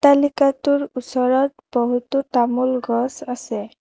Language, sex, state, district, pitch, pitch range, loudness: Assamese, female, Assam, Kamrup Metropolitan, 260 Hz, 250-280 Hz, -20 LUFS